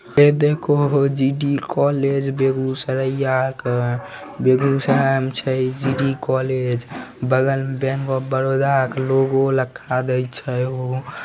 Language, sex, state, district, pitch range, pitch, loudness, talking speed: Maithili, male, Bihar, Begusarai, 130-135 Hz, 135 Hz, -20 LUFS, 130 wpm